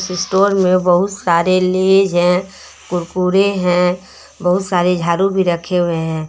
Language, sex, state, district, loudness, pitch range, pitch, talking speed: Hindi, female, Jharkhand, Deoghar, -15 LUFS, 175-190 Hz, 180 Hz, 145 wpm